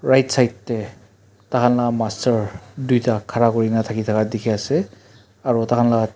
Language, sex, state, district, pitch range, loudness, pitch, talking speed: Nagamese, male, Nagaland, Dimapur, 105-120 Hz, -20 LUFS, 115 Hz, 175 wpm